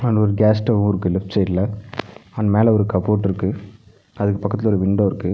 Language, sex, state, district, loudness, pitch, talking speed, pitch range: Tamil, male, Tamil Nadu, Nilgiris, -19 LUFS, 100 Hz, 190 wpm, 95-105 Hz